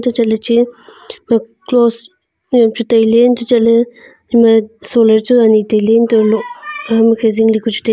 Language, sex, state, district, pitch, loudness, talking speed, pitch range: Wancho, female, Arunachal Pradesh, Longding, 230 Hz, -12 LUFS, 175 wpm, 225-240 Hz